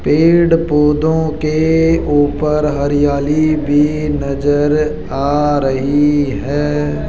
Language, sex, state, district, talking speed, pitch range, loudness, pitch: Hindi, male, Rajasthan, Jaipur, 85 wpm, 145-155 Hz, -14 LUFS, 150 Hz